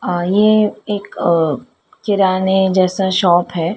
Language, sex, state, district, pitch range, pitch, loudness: Hindi, female, Madhya Pradesh, Dhar, 175-200 Hz, 190 Hz, -15 LUFS